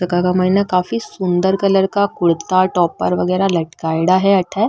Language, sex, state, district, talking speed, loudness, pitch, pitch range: Marwari, female, Rajasthan, Nagaur, 165 wpm, -16 LUFS, 185 Hz, 175-195 Hz